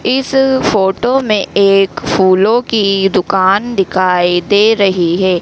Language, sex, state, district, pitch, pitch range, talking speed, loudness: Hindi, female, Madhya Pradesh, Dhar, 195 Hz, 185-225 Hz, 120 wpm, -12 LUFS